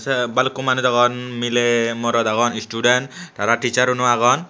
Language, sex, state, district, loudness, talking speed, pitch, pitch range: Chakma, male, Tripura, Unakoti, -18 LUFS, 145 wpm, 120 Hz, 120-125 Hz